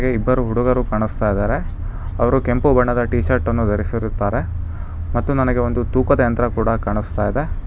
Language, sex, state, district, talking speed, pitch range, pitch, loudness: Kannada, male, Karnataka, Bangalore, 135 wpm, 100-125 Hz, 115 Hz, -19 LUFS